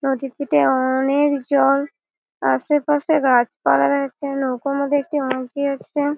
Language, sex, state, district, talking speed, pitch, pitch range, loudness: Bengali, female, West Bengal, Malda, 105 wpm, 275 Hz, 260-290 Hz, -19 LUFS